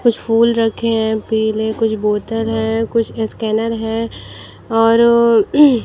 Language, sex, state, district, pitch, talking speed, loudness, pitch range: Hindi, female, Bihar, West Champaran, 225 Hz, 125 wpm, -16 LUFS, 220-230 Hz